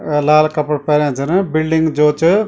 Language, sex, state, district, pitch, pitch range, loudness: Garhwali, male, Uttarakhand, Tehri Garhwal, 150 Hz, 150-160 Hz, -14 LUFS